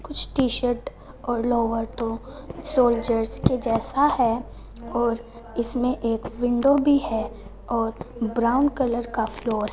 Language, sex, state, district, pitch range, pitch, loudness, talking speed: Hindi, female, Punjab, Fazilka, 225-255 Hz, 235 Hz, -23 LUFS, 135 wpm